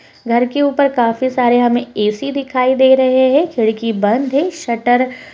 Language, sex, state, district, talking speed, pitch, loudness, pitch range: Hindi, female, Uttar Pradesh, Jalaun, 180 wpm, 255 Hz, -14 LUFS, 235-275 Hz